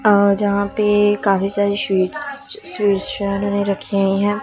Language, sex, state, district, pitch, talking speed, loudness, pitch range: Hindi, female, Punjab, Kapurthala, 200 Hz, 135 wpm, -18 LUFS, 200-210 Hz